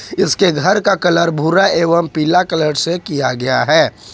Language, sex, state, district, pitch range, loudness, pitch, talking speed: Hindi, male, Jharkhand, Ranchi, 160-190 Hz, -14 LUFS, 170 Hz, 175 wpm